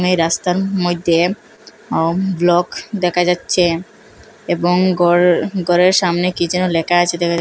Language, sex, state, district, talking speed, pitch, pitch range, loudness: Bengali, female, Assam, Hailakandi, 140 wpm, 175 Hz, 175-185 Hz, -16 LUFS